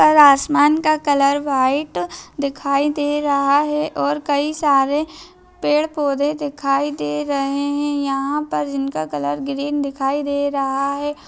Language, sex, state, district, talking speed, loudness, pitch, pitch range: Hindi, female, Bihar, East Champaran, 140 wpm, -19 LUFS, 285 Hz, 275-295 Hz